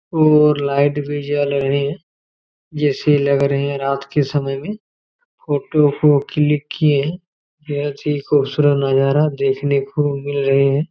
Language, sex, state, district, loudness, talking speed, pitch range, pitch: Hindi, male, Chhattisgarh, Raigarh, -17 LUFS, 155 wpm, 140-150 Hz, 145 Hz